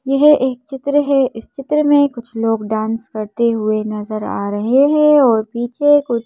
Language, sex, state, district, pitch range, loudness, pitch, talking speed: Hindi, female, Madhya Pradesh, Bhopal, 220-285 Hz, -16 LUFS, 240 Hz, 190 wpm